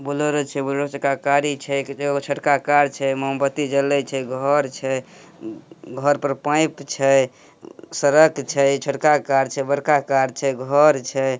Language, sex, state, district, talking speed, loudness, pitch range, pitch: Hindi, male, Bihar, Samastipur, 165 wpm, -20 LUFS, 135-145 Hz, 140 Hz